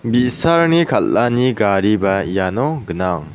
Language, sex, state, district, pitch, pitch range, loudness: Garo, male, Meghalaya, South Garo Hills, 115 Hz, 95-130 Hz, -16 LUFS